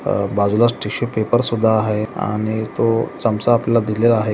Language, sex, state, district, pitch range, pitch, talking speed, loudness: Marathi, male, Maharashtra, Solapur, 105-115 Hz, 110 Hz, 165 wpm, -18 LUFS